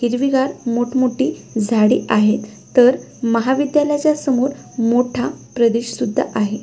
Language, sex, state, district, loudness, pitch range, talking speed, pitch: Marathi, female, Maharashtra, Solapur, -17 LUFS, 230-265 Hz, 100 wpm, 245 Hz